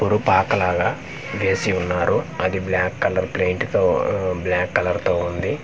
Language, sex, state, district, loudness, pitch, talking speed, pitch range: Telugu, male, Andhra Pradesh, Manyam, -21 LUFS, 95 Hz, 150 wpm, 90-130 Hz